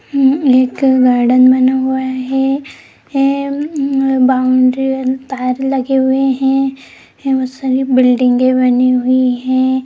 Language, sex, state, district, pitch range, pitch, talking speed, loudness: Hindi, female, Bihar, Saharsa, 255-270 Hz, 260 Hz, 110 wpm, -13 LUFS